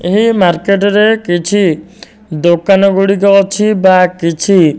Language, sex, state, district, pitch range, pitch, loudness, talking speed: Odia, male, Odisha, Nuapada, 175-200 Hz, 195 Hz, -10 LUFS, 100 wpm